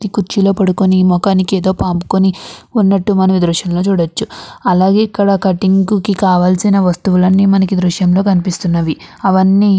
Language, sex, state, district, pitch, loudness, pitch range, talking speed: Telugu, female, Andhra Pradesh, Guntur, 190 Hz, -13 LUFS, 180-195 Hz, 140 wpm